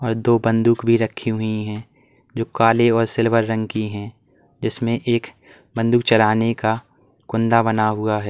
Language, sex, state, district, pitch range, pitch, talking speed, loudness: Hindi, male, Uttar Pradesh, Lalitpur, 110-115 Hz, 115 Hz, 165 wpm, -19 LUFS